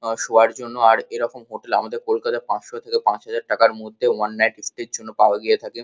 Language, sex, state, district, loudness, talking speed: Bengali, male, West Bengal, Kolkata, -20 LUFS, 225 wpm